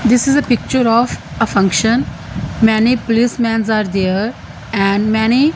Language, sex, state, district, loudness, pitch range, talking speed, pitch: English, female, Punjab, Fazilka, -15 LUFS, 215-240 Hz, 160 wpm, 225 Hz